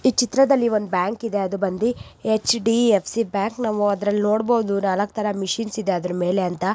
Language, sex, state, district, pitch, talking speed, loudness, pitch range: Kannada, female, Karnataka, Dakshina Kannada, 210 Hz, 180 wpm, -21 LUFS, 195-230 Hz